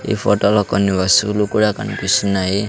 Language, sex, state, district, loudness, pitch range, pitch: Telugu, male, Andhra Pradesh, Sri Satya Sai, -16 LUFS, 100-105 Hz, 100 Hz